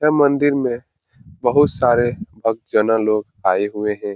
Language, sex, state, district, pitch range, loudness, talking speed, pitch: Hindi, male, Bihar, Jahanabad, 105-130 Hz, -18 LUFS, 145 wpm, 115 Hz